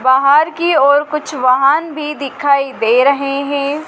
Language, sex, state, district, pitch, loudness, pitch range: Hindi, female, Madhya Pradesh, Dhar, 280 Hz, -13 LUFS, 275-300 Hz